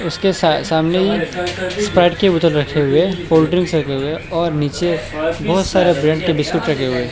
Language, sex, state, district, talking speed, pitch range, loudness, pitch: Hindi, male, Assam, Hailakandi, 160 wpm, 155-180 Hz, -16 LUFS, 170 Hz